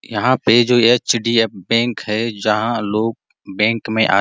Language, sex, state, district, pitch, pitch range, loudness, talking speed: Hindi, male, Chhattisgarh, Bastar, 115 Hz, 105-120 Hz, -16 LUFS, 170 wpm